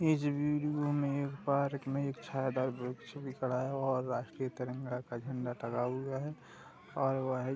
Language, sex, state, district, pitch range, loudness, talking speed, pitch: Hindi, male, Bihar, Madhepura, 125-140 Hz, -36 LUFS, 150 wpm, 135 Hz